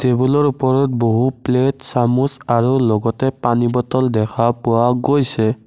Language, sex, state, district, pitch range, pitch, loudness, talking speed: Assamese, male, Assam, Kamrup Metropolitan, 120-130 Hz, 125 Hz, -16 LUFS, 125 wpm